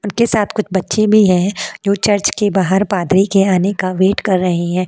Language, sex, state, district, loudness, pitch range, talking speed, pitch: Hindi, female, Uttar Pradesh, Jalaun, -14 LUFS, 185-205 Hz, 220 wpm, 195 Hz